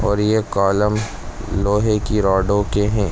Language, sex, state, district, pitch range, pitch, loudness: Hindi, male, Uttar Pradesh, Deoria, 100-105 Hz, 105 Hz, -18 LUFS